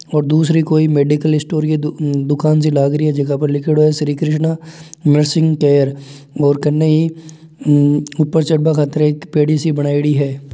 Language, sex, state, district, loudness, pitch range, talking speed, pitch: Marwari, male, Rajasthan, Nagaur, -15 LUFS, 145-155 Hz, 165 wpm, 150 Hz